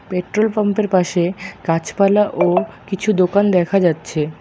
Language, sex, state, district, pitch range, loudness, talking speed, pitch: Bengali, male, West Bengal, Alipurduar, 175-205 Hz, -17 LUFS, 110 wpm, 185 Hz